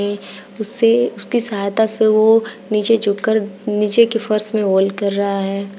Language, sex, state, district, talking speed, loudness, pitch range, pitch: Hindi, female, Uttar Pradesh, Shamli, 175 wpm, -17 LUFS, 200-220 Hz, 215 Hz